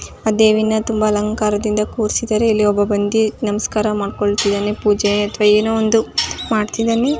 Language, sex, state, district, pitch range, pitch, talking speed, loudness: Kannada, female, Karnataka, Chamarajanagar, 210-220 Hz, 215 Hz, 140 wpm, -17 LUFS